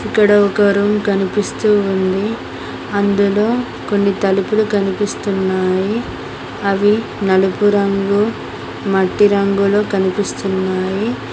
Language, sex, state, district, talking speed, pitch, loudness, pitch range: Telugu, female, Telangana, Mahabubabad, 80 wpm, 200 Hz, -16 LUFS, 195-210 Hz